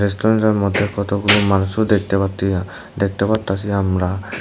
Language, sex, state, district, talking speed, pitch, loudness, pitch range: Bengali, male, Tripura, Unakoti, 120 wpm, 100 Hz, -18 LUFS, 95-105 Hz